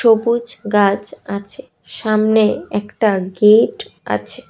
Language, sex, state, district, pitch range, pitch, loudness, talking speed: Bengali, female, Tripura, West Tripura, 205-225 Hz, 215 Hz, -16 LUFS, 95 wpm